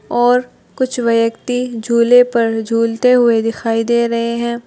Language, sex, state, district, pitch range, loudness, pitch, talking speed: Hindi, female, Uttar Pradesh, Saharanpur, 230-245 Hz, -15 LUFS, 235 Hz, 140 wpm